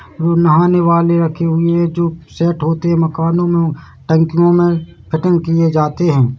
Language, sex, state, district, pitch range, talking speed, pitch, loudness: Hindi, male, Chhattisgarh, Bilaspur, 160-170 Hz, 160 wpm, 165 Hz, -14 LUFS